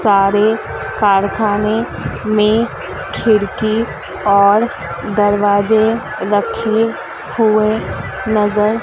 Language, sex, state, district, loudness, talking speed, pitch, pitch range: Hindi, female, Madhya Pradesh, Dhar, -15 LUFS, 60 wpm, 215 Hz, 205-220 Hz